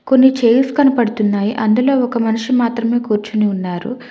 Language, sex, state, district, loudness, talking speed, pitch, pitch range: Telugu, female, Telangana, Hyderabad, -15 LUFS, 130 wpm, 235 Hz, 215-250 Hz